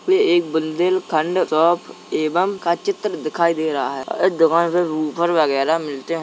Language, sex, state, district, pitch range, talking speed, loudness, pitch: Hindi, male, Uttar Pradesh, Jalaun, 155-185 Hz, 175 wpm, -19 LUFS, 170 Hz